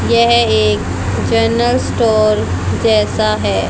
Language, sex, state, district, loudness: Hindi, female, Haryana, Jhajjar, -14 LUFS